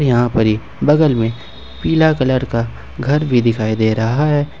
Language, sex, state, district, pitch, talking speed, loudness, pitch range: Hindi, male, Jharkhand, Ranchi, 120 Hz, 185 wpm, -16 LUFS, 110-145 Hz